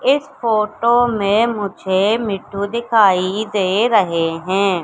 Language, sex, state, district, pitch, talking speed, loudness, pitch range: Hindi, female, Madhya Pradesh, Katni, 210 Hz, 110 wpm, -17 LUFS, 195-230 Hz